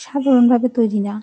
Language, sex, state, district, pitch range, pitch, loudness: Bengali, female, West Bengal, Jalpaiguri, 215-255 Hz, 245 Hz, -16 LUFS